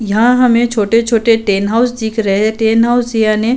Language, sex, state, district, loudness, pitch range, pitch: Hindi, female, Uttar Pradesh, Budaun, -12 LUFS, 215-235 Hz, 225 Hz